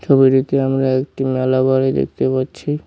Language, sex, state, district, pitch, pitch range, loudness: Bengali, male, West Bengal, Cooch Behar, 130 Hz, 130-135 Hz, -17 LUFS